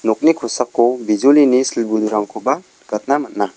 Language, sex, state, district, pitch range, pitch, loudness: Garo, male, Meghalaya, West Garo Hills, 110-135 Hz, 120 Hz, -16 LUFS